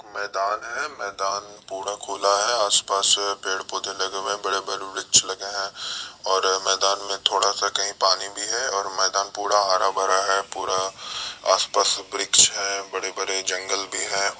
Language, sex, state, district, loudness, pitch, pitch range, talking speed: Hindi, male, Bihar, Madhepura, -22 LUFS, 100 Hz, 95-100 Hz, 155 wpm